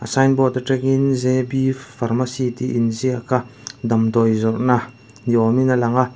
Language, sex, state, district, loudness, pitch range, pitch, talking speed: Mizo, male, Mizoram, Aizawl, -19 LUFS, 115-130 Hz, 125 Hz, 135 wpm